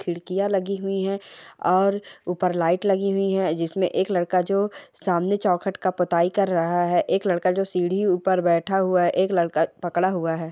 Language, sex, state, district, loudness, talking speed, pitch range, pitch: Hindi, female, Chhattisgarh, Sarguja, -23 LUFS, 195 wpm, 175-195 Hz, 185 Hz